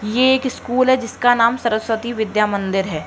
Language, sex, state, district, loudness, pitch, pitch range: Hindi, female, Uttar Pradesh, Hamirpur, -18 LUFS, 230 Hz, 210-245 Hz